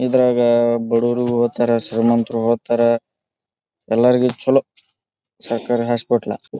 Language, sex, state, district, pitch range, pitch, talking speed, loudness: Kannada, male, Karnataka, Bijapur, 115-120 Hz, 120 Hz, 90 wpm, -18 LUFS